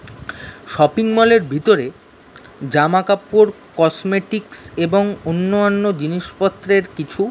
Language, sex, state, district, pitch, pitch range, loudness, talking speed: Bengali, male, West Bengal, Kolkata, 195 Hz, 165-205 Hz, -17 LUFS, 105 wpm